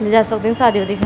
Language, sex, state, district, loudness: Garhwali, female, Uttarakhand, Tehri Garhwal, -16 LUFS